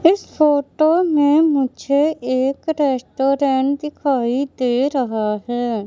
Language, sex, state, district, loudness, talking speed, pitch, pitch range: Hindi, female, Madhya Pradesh, Katni, -18 LUFS, 100 wpm, 275 Hz, 255-300 Hz